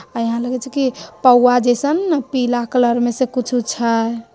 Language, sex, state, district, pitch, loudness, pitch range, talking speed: Hindi, female, Bihar, Begusarai, 245 Hz, -17 LUFS, 235-255 Hz, 180 wpm